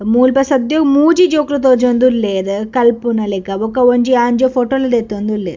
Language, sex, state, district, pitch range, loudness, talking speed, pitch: Tulu, female, Karnataka, Dakshina Kannada, 215-265 Hz, -13 LUFS, 160 wpm, 245 Hz